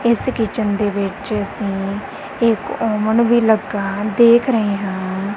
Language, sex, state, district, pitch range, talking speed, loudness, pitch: Punjabi, female, Punjab, Kapurthala, 200-230 Hz, 135 wpm, -18 LUFS, 210 Hz